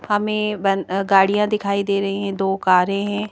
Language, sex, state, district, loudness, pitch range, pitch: Hindi, female, Madhya Pradesh, Bhopal, -19 LUFS, 195-205 Hz, 200 Hz